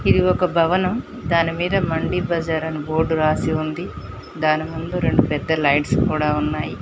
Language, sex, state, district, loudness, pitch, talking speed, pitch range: Telugu, female, Telangana, Mahabubabad, -20 LUFS, 160 Hz, 150 wpm, 155-175 Hz